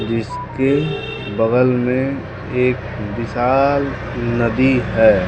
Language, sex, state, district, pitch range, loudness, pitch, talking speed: Hindi, male, Bihar, West Champaran, 115-130 Hz, -18 LUFS, 125 Hz, 80 wpm